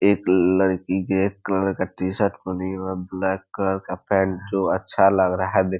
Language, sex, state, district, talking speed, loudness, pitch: Hindi, male, Bihar, Muzaffarpur, 205 wpm, -22 LUFS, 95 Hz